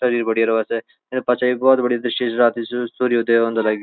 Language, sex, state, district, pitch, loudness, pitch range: Garhwali, male, Uttarakhand, Uttarkashi, 120 Hz, -19 LUFS, 115-125 Hz